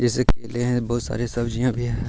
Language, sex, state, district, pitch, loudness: Hindi, male, Bihar, Gaya, 120 Hz, -24 LUFS